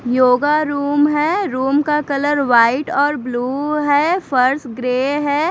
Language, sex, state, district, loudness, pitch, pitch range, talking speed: Hindi, female, Maharashtra, Gondia, -16 LUFS, 285 Hz, 255-295 Hz, 140 wpm